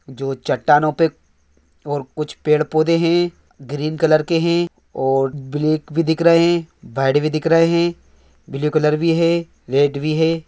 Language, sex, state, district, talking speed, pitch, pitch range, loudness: Hindi, male, Andhra Pradesh, Chittoor, 165 wpm, 155 Hz, 140-165 Hz, -18 LUFS